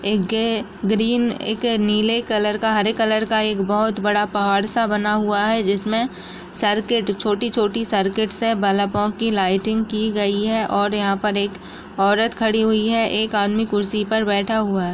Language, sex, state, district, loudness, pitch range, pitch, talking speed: Hindi, female, Bihar, Bhagalpur, -19 LUFS, 205-220 Hz, 215 Hz, 175 wpm